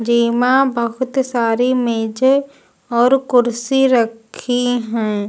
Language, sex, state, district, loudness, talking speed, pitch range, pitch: Hindi, female, Uttar Pradesh, Lucknow, -16 LUFS, 90 wpm, 230-260 Hz, 245 Hz